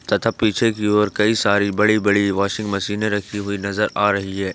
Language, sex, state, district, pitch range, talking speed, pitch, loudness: Hindi, male, Jharkhand, Ranchi, 100-105 Hz, 210 wpm, 105 Hz, -19 LUFS